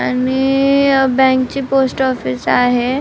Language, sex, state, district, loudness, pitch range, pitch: Marathi, female, Maharashtra, Nagpur, -14 LUFS, 255-270 Hz, 265 Hz